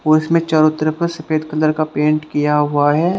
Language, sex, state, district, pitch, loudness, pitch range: Hindi, male, Haryana, Rohtak, 155 Hz, -16 LUFS, 150-160 Hz